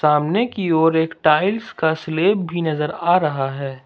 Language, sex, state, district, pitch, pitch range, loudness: Hindi, male, Jharkhand, Ranchi, 160 Hz, 150-180 Hz, -19 LUFS